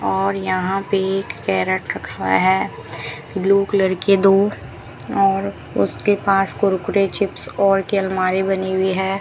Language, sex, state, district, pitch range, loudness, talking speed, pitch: Hindi, female, Rajasthan, Bikaner, 185-195 Hz, -19 LUFS, 145 wpm, 195 Hz